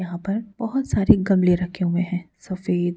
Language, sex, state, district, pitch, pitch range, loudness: Hindi, female, Madhya Pradesh, Bhopal, 180 Hz, 175-200 Hz, -22 LUFS